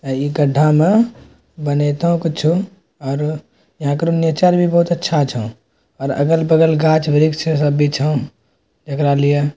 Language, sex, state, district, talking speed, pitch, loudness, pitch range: Maithili, male, Bihar, Bhagalpur, 150 wpm, 150 Hz, -16 LUFS, 145-165 Hz